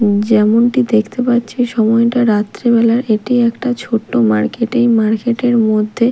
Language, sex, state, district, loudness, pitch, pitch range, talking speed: Bengali, female, Odisha, Malkangiri, -14 LUFS, 230 Hz, 215-240 Hz, 135 wpm